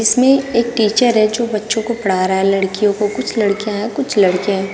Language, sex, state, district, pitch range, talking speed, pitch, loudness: Hindi, female, Uttar Pradesh, Shamli, 195-235 Hz, 225 wpm, 215 Hz, -15 LUFS